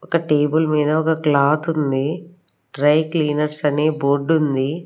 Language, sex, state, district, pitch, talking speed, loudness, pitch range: Telugu, female, Andhra Pradesh, Sri Satya Sai, 150 Hz, 135 wpm, -18 LUFS, 145-160 Hz